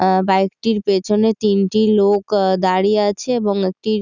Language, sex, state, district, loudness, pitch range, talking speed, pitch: Bengali, female, West Bengal, Dakshin Dinajpur, -17 LUFS, 190-215 Hz, 180 wpm, 200 Hz